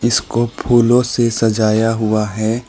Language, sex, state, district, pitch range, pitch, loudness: Hindi, male, West Bengal, Alipurduar, 110-120 Hz, 115 Hz, -15 LUFS